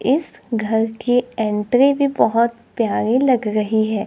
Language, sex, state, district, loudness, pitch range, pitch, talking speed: Hindi, female, Maharashtra, Gondia, -18 LUFS, 220-245 Hz, 230 Hz, 145 wpm